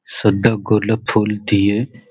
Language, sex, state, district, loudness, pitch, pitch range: Bengali, male, West Bengal, Malda, -17 LUFS, 110 Hz, 105-115 Hz